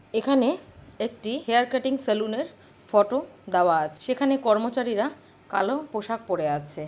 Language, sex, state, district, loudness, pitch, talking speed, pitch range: Bengali, female, West Bengal, Purulia, -25 LUFS, 230 Hz, 120 wpm, 205-265 Hz